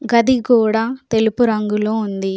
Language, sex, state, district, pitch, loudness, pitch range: Telugu, female, Telangana, Komaram Bheem, 225 Hz, -17 LUFS, 215-240 Hz